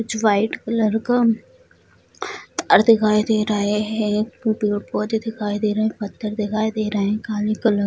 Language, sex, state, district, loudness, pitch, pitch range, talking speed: Hindi, female, Bihar, Bhagalpur, -20 LUFS, 215 Hz, 210-220 Hz, 175 wpm